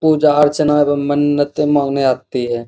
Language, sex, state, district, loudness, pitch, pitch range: Hindi, male, Bihar, Bhagalpur, -15 LUFS, 145 Hz, 140-150 Hz